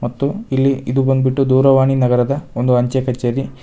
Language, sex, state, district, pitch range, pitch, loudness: Kannada, male, Karnataka, Bangalore, 125-135 Hz, 130 Hz, -16 LUFS